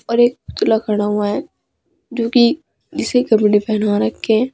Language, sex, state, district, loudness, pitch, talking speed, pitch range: Hindi, female, Uttar Pradesh, Saharanpur, -17 LUFS, 225 Hz, 170 wpm, 210-245 Hz